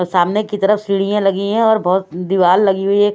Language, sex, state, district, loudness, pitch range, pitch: Hindi, female, Chhattisgarh, Raipur, -15 LUFS, 185-205 Hz, 195 Hz